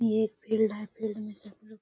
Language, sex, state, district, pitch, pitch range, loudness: Magahi, female, Bihar, Gaya, 215 Hz, 210-220 Hz, -31 LUFS